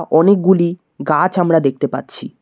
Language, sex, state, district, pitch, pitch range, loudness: Bengali, male, West Bengal, Cooch Behar, 170 Hz, 155-180 Hz, -15 LUFS